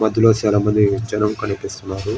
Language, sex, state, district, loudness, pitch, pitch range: Telugu, male, Andhra Pradesh, Srikakulam, -18 LUFS, 105 Hz, 105-110 Hz